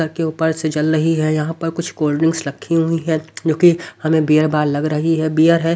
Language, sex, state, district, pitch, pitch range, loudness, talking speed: Hindi, male, Haryana, Rohtak, 160 Hz, 155-165 Hz, -17 LUFS, 250 wpm